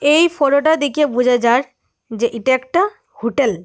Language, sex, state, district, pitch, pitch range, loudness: Bengali, female, Assam, Hailakandi, 270 Hz, 240-295 Hz, -16 LUFS